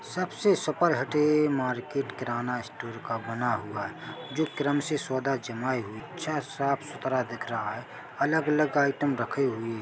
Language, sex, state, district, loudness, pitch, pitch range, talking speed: Hindi, male, Chhattisgarh, Bilaspur, -29 LUFS, 140 Hz, 120-150 Hz, 185 wpm